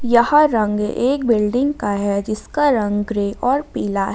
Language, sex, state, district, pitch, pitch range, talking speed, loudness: Hindi, female, Jharkhand, Ranchi, 220 Hz, 205-260 Hz, 175 wpm, -18 LUFS